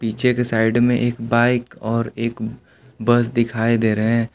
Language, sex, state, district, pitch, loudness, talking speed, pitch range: Hindi, male, Jharkhand, Palamu, 115 Hz, -19 LUFS, 165 wpm, 115-120 Hz